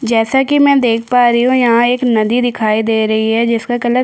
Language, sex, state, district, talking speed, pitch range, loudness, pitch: Hindi, female, Chhattisgarh, Korba, 255 wpm, 225-250 Hz, -12 LUFS, 240 Hz